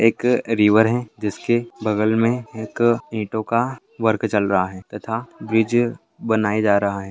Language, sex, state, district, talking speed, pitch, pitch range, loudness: Hindi, male, Bihar, Gaya, 160 wpm, 110 Hz, 105-120 Hz, -20 LUFS